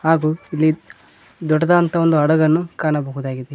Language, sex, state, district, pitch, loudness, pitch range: Kannada, male, Karnataka, Koppal, 155 Hz, -18 LUFS, 150-165 Hz